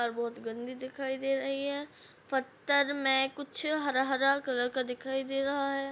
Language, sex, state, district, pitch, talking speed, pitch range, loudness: Hindi, female, Uttarakhand, Tehri Garhwal, 270 Hz, 180 wpm, 260-275 Hz, -32 LUFS